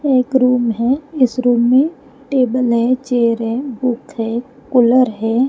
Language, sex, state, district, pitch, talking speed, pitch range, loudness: Hindi, female, Haryana, Rohtak, 250 Hz, 155 wpm, 235-265 Hz, -16 LUFS